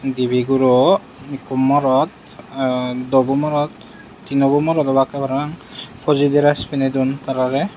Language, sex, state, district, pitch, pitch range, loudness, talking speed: Chakma, male, Tripura, Unakoti, 135 Hz, 130-145 Hz, -18 LUFS, 115 wpm